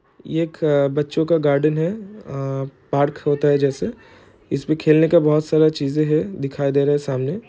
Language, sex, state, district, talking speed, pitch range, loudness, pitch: Hindi, male, Bihar, East Champaran, 175 wpm, 140-155 Hz, -19 LUFS, 150 Hz